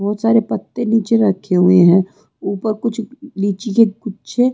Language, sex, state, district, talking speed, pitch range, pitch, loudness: Hindi, female, Chhattisgarh, Rajnandgaon, 160 wpm, 195-230 Hz, 215 Hz, -16 LUFS